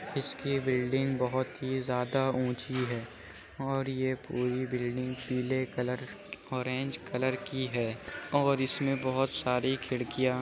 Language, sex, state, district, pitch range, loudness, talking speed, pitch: Hindi, male, Uttar Pradesh, Jyotiba Phule Nagar, 125-135 Hz, -32 LUFS, 130 wpm, 130 Hz